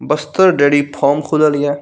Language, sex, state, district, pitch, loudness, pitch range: Maithili, male, Bihar, Saharsa, 145 Hz, -14 LUFS, 145-155 Hz